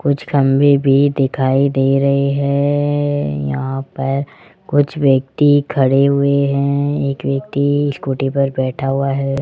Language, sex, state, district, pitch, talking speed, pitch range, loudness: Hindi, male, Rajasthan, Jaipur, 140 Hz, 135 wpm, 135-140 Hz, -16 LUFS